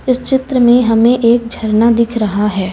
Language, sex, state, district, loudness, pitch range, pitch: Hindi, female, Chhattisgarh, Raipur, -12 LUFS, 220-245 Hz, 235 Hz